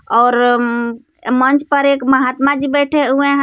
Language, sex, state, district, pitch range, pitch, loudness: Hindi, female, Jharkhand, Garhwa, 245-285 Hz, 265 Hz, -14 LUFS